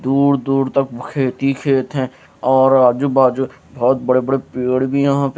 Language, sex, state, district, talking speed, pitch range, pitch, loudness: Hindi, female, Punjab, Fazilka, 190 wpm, 130-135 Hz, 135 Hz, -16 LUFS